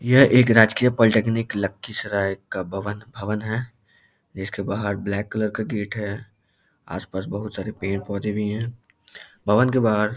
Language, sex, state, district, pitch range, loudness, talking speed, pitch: Hindi, male, Bihar, Lakhisarai, 100-110 Hz, -22 LUFS, 150 wpm, 105 Hz